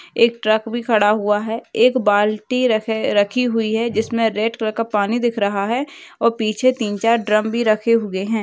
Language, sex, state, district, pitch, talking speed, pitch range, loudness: Hindi, female, Maharashtra, Nagpur, 225 Hz, 205 wpm, 215-235 Hz, -18 LUFS